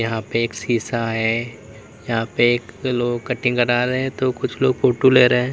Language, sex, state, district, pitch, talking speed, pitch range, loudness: Hindi, male, Uttar Pradesh, Lalitpur, 120 Hz, 215 wpm, 115-125 Hz, -19 LUFS